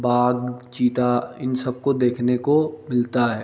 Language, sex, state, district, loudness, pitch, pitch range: Hindi, male, Jharkhand, Jamtara, -22 LUFS, 125 Hz, 120-125 Hz